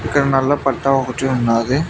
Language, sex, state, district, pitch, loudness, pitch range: Telugu, male, Telangana, Mahabubabad, 135 Hz, -17 LUFS, 125-135 Hz